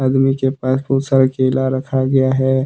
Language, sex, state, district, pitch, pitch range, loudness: Hindi, male, Jharkhand, Deoghar, 130 Hz, 130-135 Hz, -16 LUFS